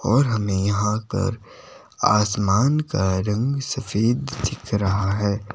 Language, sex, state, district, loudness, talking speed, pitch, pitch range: Hindi, male, Himachal Pradesh, Shimla, -22 LUFS, 120 wpm, 105 Hz, 100-125 Hz